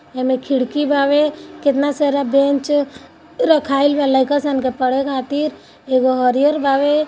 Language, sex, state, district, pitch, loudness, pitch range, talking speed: Hindi, female, Bihar, Gopalganj, 280 Hz, -17 LUFS, 265-290 Hz, 135 wpm